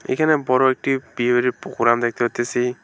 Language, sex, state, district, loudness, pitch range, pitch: Bengali, male, West Bengal, Alipurduar, -20 LUFS, 120-130 Hz, 125 Hz